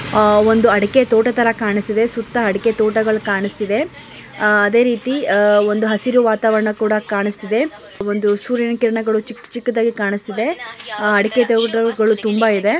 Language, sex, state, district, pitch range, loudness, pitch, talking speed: Kannada, male, Karnataka, Mysore, 210-230 Hz, -16 LUFS, 220 Hz, 150 wpm